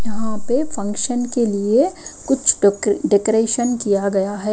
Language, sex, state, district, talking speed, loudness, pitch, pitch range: Hindi, female, Himachal Pradesh, Shimla, 130 wpm, -18 LUFS, 220 Hz, 205-245 Hz